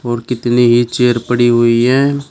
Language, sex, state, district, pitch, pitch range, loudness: Hindi, male, Uttar Pradesh, Shamli, 120 Hz, 120-125 Hz, -12 LUFS